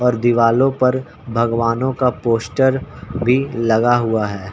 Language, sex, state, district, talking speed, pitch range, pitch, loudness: Hindi, male, Bihar, Samastipur, 130 wpm, 115-130 Hz, 120 Hz, -17 LUFS